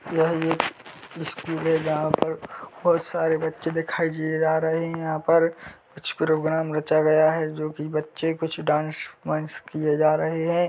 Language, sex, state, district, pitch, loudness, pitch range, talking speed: Hindi, male, Chhattisgarh, Bilaspur, 160 Hz, -24 LUFS, 155-165 Hz, 175 wpm